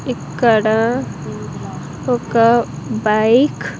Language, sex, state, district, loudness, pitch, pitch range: Telugu, female, Andhra Pradesh, Sri Satya Sai, -16 LUFS, 230 Hz, 220-240 Hz